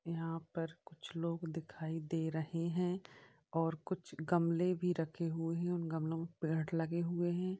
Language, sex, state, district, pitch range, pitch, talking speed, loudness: Hindi, male, Uttar Pradesh, Varanasi, 165-175 Hz, 165 Hz, 175 wpm, -38 LUFS